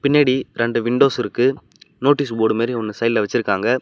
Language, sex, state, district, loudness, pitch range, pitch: Tamil, male, Tamil Nadu, Namakkal, -19 LUFS, 115-140 Hz, 125 Hz